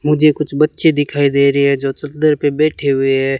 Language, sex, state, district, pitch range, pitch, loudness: Hindi, male, Rajasthan, Bikaner, 140-150 Hz, 145 Hz, -14 LUFS